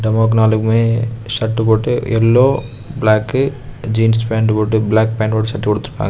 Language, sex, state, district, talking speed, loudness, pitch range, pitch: Tamil, male, Tamil Nadu, Kanyakumari, 130 wpm, -15 LUFS, 110-115 Hz, 110 Hz